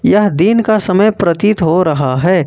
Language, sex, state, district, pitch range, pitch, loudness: Hindi, male, Jharkhand, Ranchi, 170-210 Hz, 185 Hz, -12 LUFS